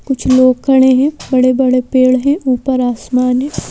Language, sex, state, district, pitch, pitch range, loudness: Hindi, female, Madhya Pradesh, Bhopal, 255 Hz, 255-265 Hz, -12 LUFS